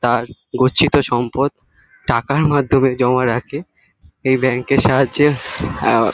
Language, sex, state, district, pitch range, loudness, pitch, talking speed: Bengali, male, West Bengal, Kolkata, 120-140 Hz, -16 LUFS, 130 Hz, 115 wpm